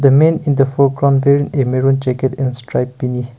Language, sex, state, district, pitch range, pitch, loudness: English, male, Nagaland, Kohima, 130-140 Hz, 135 Hz, -15 LUFS